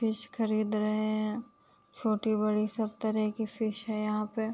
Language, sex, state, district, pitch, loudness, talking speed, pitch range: Hindi, female, Uttar Pradesh, Jalaun, 215 Hz, -31 LUFS, 160 wpm, 215-220 Hz